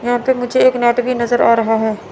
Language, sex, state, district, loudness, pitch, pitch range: Hindi, female, Chandigarh, Chandigarh, -14 LUFS, 245 Hz, 230-250 Hz